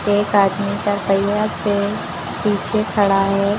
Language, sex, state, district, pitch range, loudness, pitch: Hindi, female, Uttar Pradesh, Lucknow, 200-205 Hz, -18 LUFS, 205 Hz